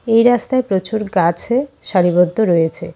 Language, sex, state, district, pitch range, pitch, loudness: Bengali, female, West Bengal, Cooch Behar, 175-235 Hz, 195 Hz, -15 LUFS